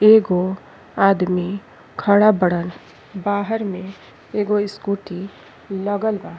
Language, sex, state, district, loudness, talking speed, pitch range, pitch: Bhojpuri, female, Uttar Pradesh, Ghazipur, -20 LUFS, 95 wpm, 185-205 Hz, 200 Hz